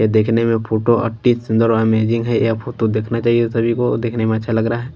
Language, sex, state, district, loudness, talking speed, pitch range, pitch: Hindi, male, Bihar, Katihar, -17 LUFS, 240 wpm, 110-115 Hz, 115 Hz